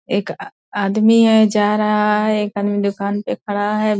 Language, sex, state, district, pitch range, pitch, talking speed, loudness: Hindi, female, Bihar, Purnia, 205-215 Hz, 210 Hz, 195 wpm, -17 LUFS